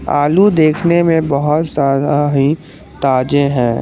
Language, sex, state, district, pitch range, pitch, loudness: Hindi, male, Jharkhand, Garhwa, 140-160 Hz, 145 Hz, -13 LUFS